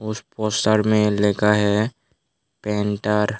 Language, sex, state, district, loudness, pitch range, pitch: Hindi, male, Tripura, West Tripura, -20 LUFS, 105-110 Hz, 105 Hz